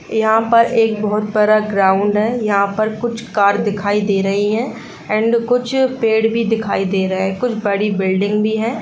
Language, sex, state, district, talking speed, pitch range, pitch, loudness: Hindi, female, Bihar, Gopalganj, 190 wpm, 200-225 Hz, 215 Hz, -16 LUFS